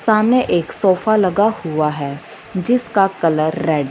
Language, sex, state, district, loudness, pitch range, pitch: Hindi, female, Punjab, Fazilka, -16 LUFS, 155-215 Hz, 185 Hz